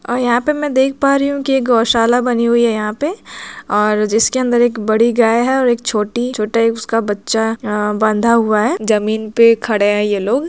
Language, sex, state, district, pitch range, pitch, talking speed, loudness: Hindi, female, Bihar, Muzaffarpur, 215-245 Hz, 230 Hz, 225 wpm, -15 LUFS